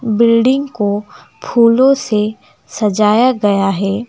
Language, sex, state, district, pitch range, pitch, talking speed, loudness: Hindi, female, West Bengal, Alipurduar, 205-240 Hz, 215 Hz, 105 wpm, -13 LUFS